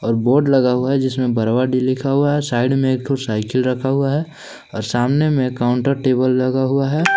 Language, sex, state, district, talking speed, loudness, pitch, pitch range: Hindi, male, Jharkhand, Palamu, 220 wpm, -17 LUFS, 130 Hz, 125-135 Hz